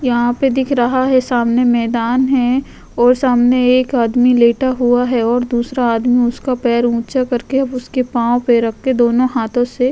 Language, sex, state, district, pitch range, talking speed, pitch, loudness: Hindi, female, Uttar Pradesh, Jalaun, 240-255 Hz, 180 wpm, 245 Hz, -14 LUFS